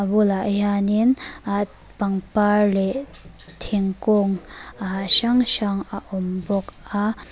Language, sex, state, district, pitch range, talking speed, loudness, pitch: Mizo, female, Mizoram, Aizawl, 195-210 Hz, 115 wpm, -20 LUFS, 205 Hz